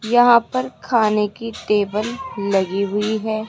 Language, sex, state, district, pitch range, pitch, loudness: Hindi, female, Rajasthan, Jaipur, 200-230 Hz, 210 Hz, -19 LUFS